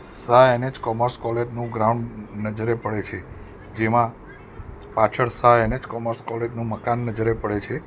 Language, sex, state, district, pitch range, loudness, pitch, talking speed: Gujarati, male, Gujarat, Valsad, 105-120 Hz, -22 LUFS, 115 Hz, 150 wpm